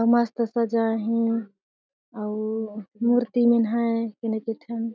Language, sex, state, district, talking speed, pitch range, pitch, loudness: Chhattisgarhi, female, Chhattisgarh, Jashpur, 110 wpm, 220-235 Hz, 230 Hz, -25 LUFS